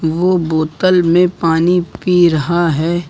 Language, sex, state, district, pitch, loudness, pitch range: Hindi, male, Uttar Pradesh, Lucknow, 170 Hz, -14 LUFS, 160-180 Hz